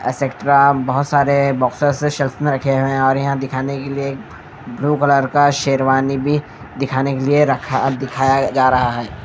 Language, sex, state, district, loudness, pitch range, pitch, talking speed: Hindi, male, Bihar, Katihar, -16 LUFS, 135-140 Hz, 135 Hz, 180 wpm